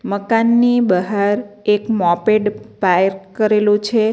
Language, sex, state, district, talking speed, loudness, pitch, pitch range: Gujarati, female, Gujarat, Navsari, 100 wpm, -16 LUFS, 210 Hz, 195-220 Hz